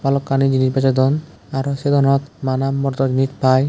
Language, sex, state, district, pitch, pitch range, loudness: Chakma, male, Tripura, West Tripura, 135 Hz, 135-140 Hz, -18 LUFS